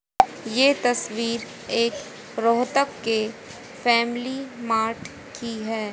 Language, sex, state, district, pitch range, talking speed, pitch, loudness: Hindi, female, Haryana, Rohtak, 225-255 Hz, 90 wpm, 235 Hz, -24 LUFS